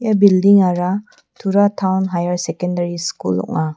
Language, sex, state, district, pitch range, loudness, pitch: Garo, female, Meghalaya, West Garo Hills, 175-200 Hz, -17 LUFS, 180 Hz